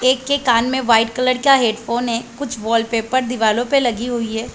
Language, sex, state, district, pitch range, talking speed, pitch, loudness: Hindi, female, Chhattisgarh, Bilaspur, 230-255 Hz, 210 wpm, 240 Hz, -17 LUFS